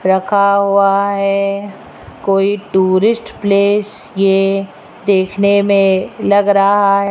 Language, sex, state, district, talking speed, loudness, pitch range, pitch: Hindi, female, Rajasthan, Jaipur, 100 wpm, -13 LUFS, 195-200 Hz, 200 Hz